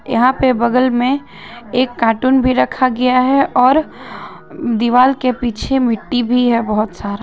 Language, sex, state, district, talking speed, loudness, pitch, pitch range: Hindi, female, Jharkhand, Ranchi, 160 wpm, -15 LUFS, 250 Hz, 230-255 Hz